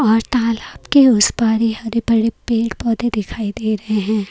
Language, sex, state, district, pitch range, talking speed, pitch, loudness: Hindi, female, Haryana, Jhajjar, 215-230 Hz, 195 wpm, 225 Hz, -17 LUFS